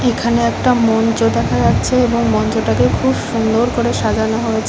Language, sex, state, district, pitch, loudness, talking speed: Bengali, female, West Bengal, Paschim Medinipur, 225 Hz, -15 LUFS, 155 wpm